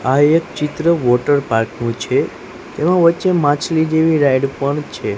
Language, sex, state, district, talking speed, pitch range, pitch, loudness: Gujarati, male, Gujarat, Gandhinagar, 150 wpm, 130-160 Hz, 145 Hz, -16 LUFS